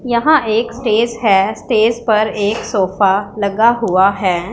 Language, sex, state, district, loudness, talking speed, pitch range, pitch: Hindi, female, Punjab, Pathankot, -14 LUFS, 145 wpm, 200-235 Hz, 215 Hz